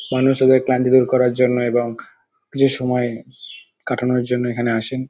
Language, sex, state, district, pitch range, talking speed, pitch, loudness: Bengali, male, West Bengal, Dakshin Dinajpur, 120-130 Hz, 155 wpm, 125 Hz, -18 LUFS